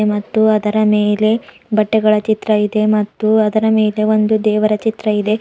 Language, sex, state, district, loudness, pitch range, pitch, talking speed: Kannada, female, Karnataka, Bidar, -15 LUFS, 210-220 Hz, 215 Hz, 145 wpm